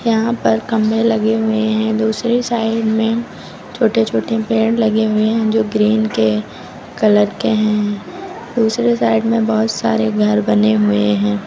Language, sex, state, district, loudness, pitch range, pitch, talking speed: Hindi, female, Uttar Pradesh, Lucknow, -16 LUFS, 200-225 Hz, 220 Hz, 155 wpm